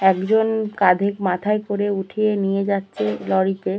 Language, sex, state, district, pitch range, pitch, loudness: Bengali, female, West Bengal, Purulia, 190-210 Hz, 195 Hz, -20 LUFS